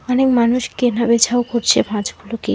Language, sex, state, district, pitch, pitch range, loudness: Bengali, female, West Bengal, Alipurduar, 235 Hz, 230-245 Hz, -16 LUFS